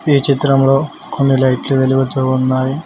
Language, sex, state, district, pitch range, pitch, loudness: Telugu, male, Telangana, Mahabubabad, 130-140 Hz, 135 Hz, -14 LUFS